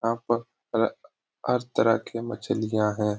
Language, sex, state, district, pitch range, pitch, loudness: Hindi, male, Bihar, Lakhisarai, 105-115 Hz, 115 Hz, -27 LUFS